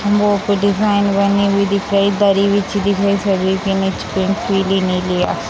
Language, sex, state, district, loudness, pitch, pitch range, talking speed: Hindi, female, Bihar, Sitamarhi, -16 LUFS, 200 Hz, 195-200 Hz, 110 wpm